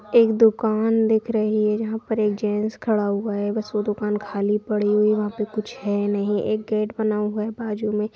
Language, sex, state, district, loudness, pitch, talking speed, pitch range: Angika, female, Bihar, Supaul, -22 LUFS, 215 Hz, 220 wpm, 210-220 Hz